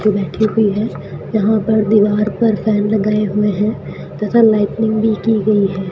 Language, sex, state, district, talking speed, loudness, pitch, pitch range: Hindi, female, Rajasthan, Bikaner, 180 wpm, -15 LUFS, 210 Hz, 210-220 Hz